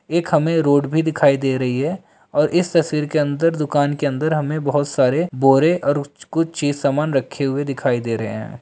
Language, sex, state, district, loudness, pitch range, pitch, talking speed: Hindi, male, Bihar, Jamui, -19 LUFS, 140-160 Hz, 145 Hz, 210 wpm